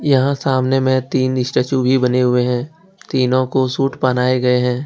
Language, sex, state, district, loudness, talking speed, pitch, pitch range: Hindi, male, Jharkhand, Ranchi, -16 LUFS, 185 wpm, 130 Hz, 125-135 Hz